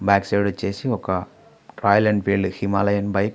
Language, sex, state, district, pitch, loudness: Telugu, male, Andhra Pradesh, Visakhapatnam, 100 Hz, -21 LUFS